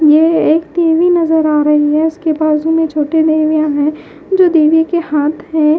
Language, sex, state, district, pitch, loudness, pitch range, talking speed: Hindi, female, Bihar, Katihar, 315 Hz, -12 LUFS, 305-325 Hz, 185 wpm